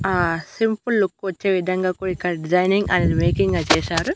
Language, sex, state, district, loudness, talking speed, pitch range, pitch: Telugu, female, Andhra Pradesh, Annamaya, -20 LUFS, 175 wpm, 180-200 Hz, 185 Hz